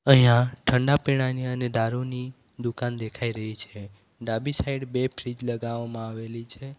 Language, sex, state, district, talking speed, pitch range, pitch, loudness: Gujarati, male, Gujarat, Valsad, 140 wpm, 115-130 Hz, 120 Hz, -26 LUFS